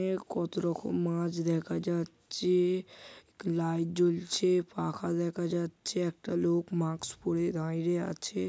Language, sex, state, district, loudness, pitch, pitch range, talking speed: Bengali, male, West Bengal, Kolkata, -32 LUFS, 170 Hz, 170-180 Hz, 125 wpm